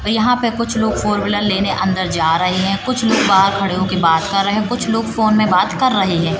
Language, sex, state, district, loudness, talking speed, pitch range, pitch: Hindi, female, Madhya Pradesh, Katni, -16 LUFS, 270 wpm, 185-220 Hz, 200 Hz